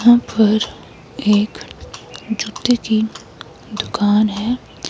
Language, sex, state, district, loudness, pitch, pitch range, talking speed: Hindi, female, Himachal Pradesh, Shimla, -18 LUFS, 220 Hz, 210-235 Hz, 85 wpm